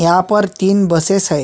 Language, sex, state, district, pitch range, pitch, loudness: Hindi, male, Chhattisgarh, Sukma, 170-195 Hz, 185 Hz, -14 LUFS